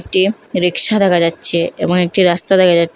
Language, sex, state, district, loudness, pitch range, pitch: Bengali, female, Assam, Hailakandi, -14 LUFS, 170-190 Hz, 180 Hz